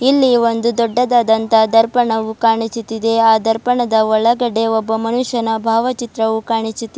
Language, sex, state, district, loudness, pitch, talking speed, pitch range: Kannada, female, Karnataka, Bidar, -15 LUFS, 225 Hz, 105 wpm, 225-240 Hz